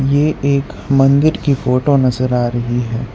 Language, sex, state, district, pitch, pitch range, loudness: Hindi, male, Gujarat, Valsad, 130 Hz, 120-140 Hz, -15 LUFS